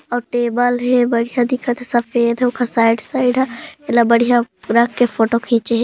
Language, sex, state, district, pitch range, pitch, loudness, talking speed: Hindi, female, Chhattisgarh, Kabirdham, 235-245 Hz, 240 Hz, -16 LUFS, 205 wpm